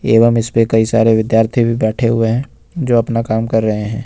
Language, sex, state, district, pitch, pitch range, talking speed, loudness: Hindi, male, Jharkhand, Ranchi, 115 Hz, 110-115 Hz, 235 wpm, -14 LUFS